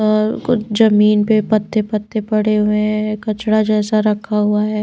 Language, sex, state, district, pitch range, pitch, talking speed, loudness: Hindi, female, Maharashtra, Washim, 210-215 Hz, 215 Hz, 175 wpm, -16 LUFS